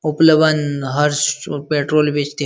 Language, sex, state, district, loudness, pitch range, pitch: Hindi, male, Bihar, Supaul, -16 LUFS, 145-155 Hz, 150 Hz